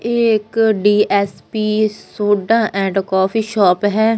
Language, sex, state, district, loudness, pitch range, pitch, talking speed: Punjabi, female, Punjab, Fazilka, -16 LUFS, 200-220 Hz, 210 Hz, 115 wpm